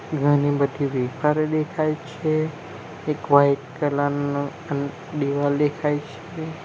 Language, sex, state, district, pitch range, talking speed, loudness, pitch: Gujarati, male, Gujarat, Valsad, 140-155 Hz, 115 wpm, -23 LUFS, 145 Hz